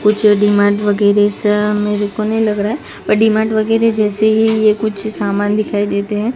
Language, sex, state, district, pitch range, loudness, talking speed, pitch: Hindi, female, Gujarat, Gandhinagar, 205-220 Hz, -14 LUFS, 190 wpm, 210 Hz